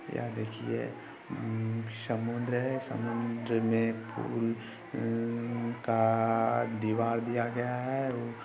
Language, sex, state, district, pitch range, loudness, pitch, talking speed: Hindi, male, Bihar, Samastipur, 115-120 Hz, -32 LUFS, 115 Hz, 105 wpm